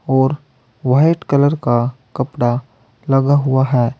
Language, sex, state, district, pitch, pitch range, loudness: Hindi, male, Uttar Pradesh, Saharanpur, 130 Hz, 125-140 Hz, -16 LUFS